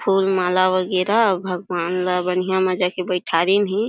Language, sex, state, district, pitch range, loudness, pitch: Chhattisgarhi, female, Chhattisgarh, Jashpur, 180-190 Hz, -19 LUFS, 185 Hz